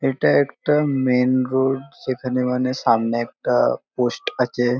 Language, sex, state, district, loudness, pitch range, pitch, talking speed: Bengali, male, West Bengal, North 24 Parganas, -20 LUFS, 120-130 Hz, 125 Hz, 125 wpm